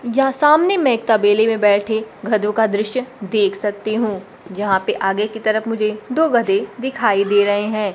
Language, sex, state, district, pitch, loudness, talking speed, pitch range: Hindi, female, Bihar, Kaimur, 215 Hz, -17 LUFS, 190 wpm, 205-235 Hz